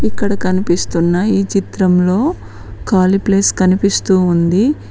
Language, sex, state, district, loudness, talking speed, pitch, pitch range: Telugu, female, Telangana, Mahabubabad, -14 LUFS, 100 wpm, 190 Hz, 185-200 Hz